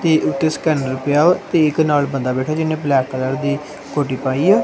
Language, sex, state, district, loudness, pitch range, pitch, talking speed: Punjabi, male, Punjab, Kapurthala, -18 LUFS, 135-155 Hz, 145 Hz, 220 wpm